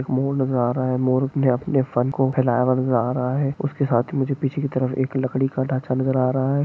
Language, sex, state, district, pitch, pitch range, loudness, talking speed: Hindi, male, West Bengal, Jhargram, 130 Hz, 130-135 Hz, -21 LUFS, 245 wpm